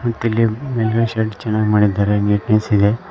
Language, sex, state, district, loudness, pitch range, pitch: Kannada, male, Karnataka, Koppal, -17 LUFS, 105-115 Hz, 110 Hz